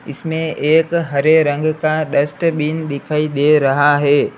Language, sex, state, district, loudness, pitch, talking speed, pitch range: Hindi, male, Uttar Pradesh, Lalitpur, -16 LUFS, 150 Hz, 135 wpm, 145-160 Hz